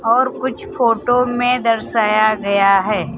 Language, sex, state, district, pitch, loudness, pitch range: Hindi, female, Bihar, Kaimur, 230 Hz, -16 LUFS, 215-245 Hz